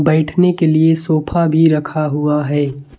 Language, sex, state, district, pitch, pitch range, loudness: Hindi, male, Chhattisgarh, Raipur, 155 Hz, 150-160 Hz, -14 LUFS